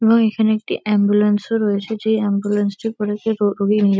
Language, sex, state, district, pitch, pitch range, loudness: Bengali, female, West Bengal, Kolkata, 210 Hz, 205-220 Hz, -18 LUFS